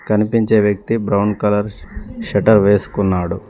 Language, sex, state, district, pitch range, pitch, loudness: Telugu, male, Telangana, Mahabubabad, 100-110 Hz, 105 Hz, -16 LUFS